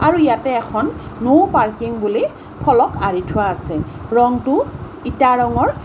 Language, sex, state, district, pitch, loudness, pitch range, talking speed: Assamese, female, Assam, Kamrup Metropolitan, 250 Hz, -17 LUFS, 235-285 Hz, 135 wpm